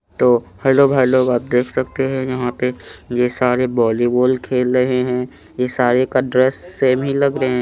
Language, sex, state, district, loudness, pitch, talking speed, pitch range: Hindi, male, Chandigarh, Chandigarh, -17 LUFS, 125 Hz, 190 wpm, 125-130 Hz